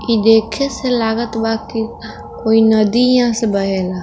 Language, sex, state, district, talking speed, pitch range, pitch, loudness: Hindi, female, Bihar, East Champaran, 180 wpm, 220-235 Hz, 225 Hz, -15 LUFS